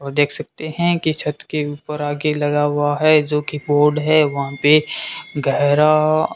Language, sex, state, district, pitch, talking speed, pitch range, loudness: Hindi, male, Rajasthan, Bikaner, 150 Hz, 200 wpm, 145-155 Hz, -18 LUFS